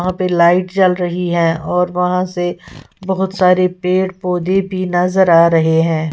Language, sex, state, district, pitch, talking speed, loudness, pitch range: Hindi, female, Uttar Pradesh, Lalitpur, 180 Hz, 175 wpm, -15 LUFS, 175-185 Hz